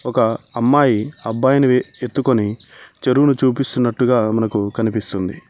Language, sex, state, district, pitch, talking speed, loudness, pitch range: Telugu, male, Telangana, Mahabubabad, 125 Hz, 85 wpm, -17 LUFS, 110-130 Hz